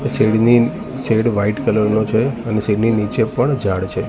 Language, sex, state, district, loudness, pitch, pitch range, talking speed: Gujarati, male, Gujarat, Gandhinagar, -17 LUFS, 110 Hz, 105-120 Hz, 190 wpm